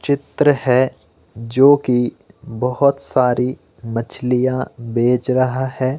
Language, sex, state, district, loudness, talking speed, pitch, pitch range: Hindi, male, Himachal Pradesh, Shimla, -17 LUFS, 100 wpm, 125 Hz, 120-130 Hz